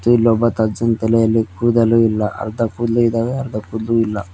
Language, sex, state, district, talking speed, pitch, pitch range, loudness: Kannada, male, Karnataka, Koppal, 150 wpm, 115 Hz, 110-115 Hz, -17 LUFS